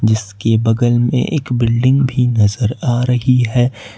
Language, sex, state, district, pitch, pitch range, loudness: Hindi, male, Jharkhand, Ranchi, 120 Hz, 115-125 Hz, -15 LUFS